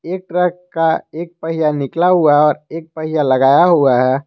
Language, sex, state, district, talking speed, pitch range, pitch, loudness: Hindi, male, Jharkhand, Garhwa, 195 wpm, 145-175 Hz, 160 Hz, -15 LUFS